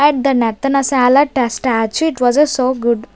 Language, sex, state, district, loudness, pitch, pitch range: English, female, Punjab, Kapurthala, -14 LUFS, 260 Hz, 240-275 Hz